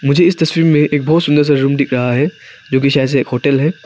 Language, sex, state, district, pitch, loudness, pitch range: Hindi, male, Arunachal Pradesh, Papum Pare, 145 Hz, -13 LUFS, 135-155 Hz